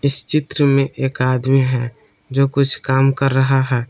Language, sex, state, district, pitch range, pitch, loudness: Hindi, male, Jharkhand, Palamu, 130-140 Hz, 135 Hz, -16 LUFS